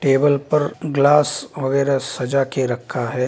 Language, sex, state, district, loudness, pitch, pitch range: Hindi, male, Bihar, Darbhanga, -19 LUFS, 140 Hz, 130-145 Hz